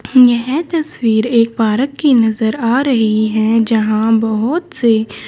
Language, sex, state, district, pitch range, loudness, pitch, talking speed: Hindi, female, Haryana, Charkhi Dadri, 220-260 Hz, -14 LUFS, 230 Hz, 135 wpm